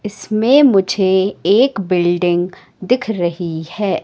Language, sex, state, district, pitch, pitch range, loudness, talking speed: Hindi, female, Madhya Pradesh, Katni, 190 Hz, 175-215 Hz, -15 LUFS, 105 wpm